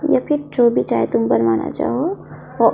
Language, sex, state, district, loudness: Hindi, female, Chhattisgarh, Kabirdham, -18 LUFS